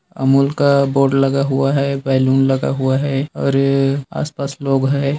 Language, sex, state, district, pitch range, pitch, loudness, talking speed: Hindi, male, Chhattisgarh, Bilaspur, 135-140 Hz, 135 Hz, -16 LUFS, 175 wpm